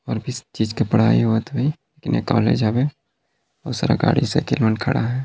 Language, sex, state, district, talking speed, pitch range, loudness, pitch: Hindi, male, Chhattisgarh, Sarguja, 205 wpm, 110-135 Hz, -20 LUFS, 125 Hz